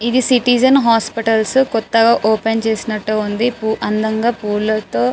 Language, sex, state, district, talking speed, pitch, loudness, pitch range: Telugu, female, Telangana, Karimnagar, 115 wpm, 225 Hz, -15 LUFS, 215-235 Hz